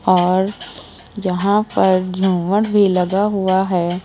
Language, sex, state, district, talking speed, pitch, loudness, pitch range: Hindi, female, Uttar Pradesh, Lucknow, 120 wpm, 190 Hz, -17 LUFS, 185-200 Hz